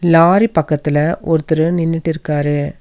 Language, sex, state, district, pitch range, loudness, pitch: Tamil, female, Tamil Nadu, Nilgiris, 150-165 Hz, -15 LUFS, 160 Hz